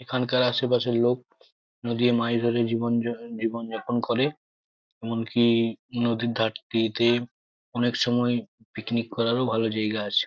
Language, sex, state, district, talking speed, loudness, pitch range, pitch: Bengali, male, West Bengal, Jhargram, 115 wpm, -25 LUFS, 115-120 Hz, 115 Hz